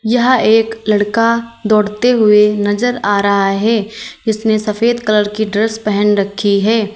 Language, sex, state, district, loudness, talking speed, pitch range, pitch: Hindi, female, Uttar Pradesh, Lalitpur, -13 LUFS, 145 wpm, 205-225 Hz, 215 Hz